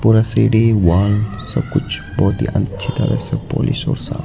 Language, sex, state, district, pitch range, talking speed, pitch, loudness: Hindi, male, Arunachal Pradesh, Lower Dibang Valley, 105-140 Hz, 200 wpm, 110 Hz, -17 LUFS